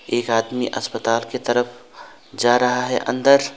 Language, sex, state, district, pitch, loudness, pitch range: Hindi, male, West Bengal, Alipurduar, 120 Hz, -20 LUFS, 120-125 Hz